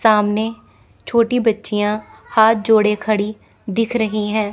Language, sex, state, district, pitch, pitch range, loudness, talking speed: Hindi, female, Chandigarh, Chandigarh, 215 Hz, 210-225 Hz, -18 LUFS, 120 wpm